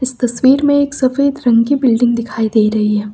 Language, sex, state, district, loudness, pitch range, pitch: Hindi, female, Uttar Pradesh, Lucknow, -13 LUFS, 225-275 Hz, 245 Hz